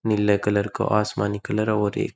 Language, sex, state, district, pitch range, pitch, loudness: Rajasthani, male, Rajasthan, Churu, 100-110 Hz, 105 Hz, -23 LUFS